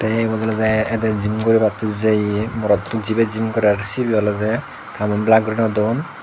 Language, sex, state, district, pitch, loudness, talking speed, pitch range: Chakma, male, Tripura, Dhalai, 110 Hz, -18 LUFS, 175 wpm, 105-110 Hz